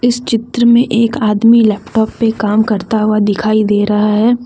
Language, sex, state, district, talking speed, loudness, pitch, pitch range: Hindi, female, Jharkhand, Deoghar, 190 wpm, -12 LUFS, 220 Hz, 210-235 Hz